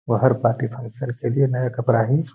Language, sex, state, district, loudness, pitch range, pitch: Hindi, male, Bihar, Gaya, -21 LUFS, 120-130 Hz, 125 Hz